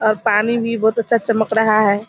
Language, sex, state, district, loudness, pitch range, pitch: Hindi, female, Bihar, Kishanganj, -16 LUFS, 215-230 Hz, 220 Hz